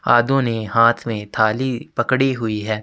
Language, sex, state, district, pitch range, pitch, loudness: Hindi, male, Chhattisgarh, Sukma, 110-130 Hz, 120 Hz, -19 LUFS